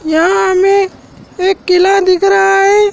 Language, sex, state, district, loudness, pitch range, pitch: Hindi, male, Madhya Pradesh, Dhar, -10 LUFS, 370-395 Hz, 385 Hz